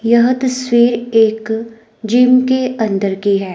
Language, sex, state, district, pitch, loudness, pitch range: Hindi, female, Himachal Pradesh, Shimla, 230 Hz, -14 LUFS, 220-250 Hz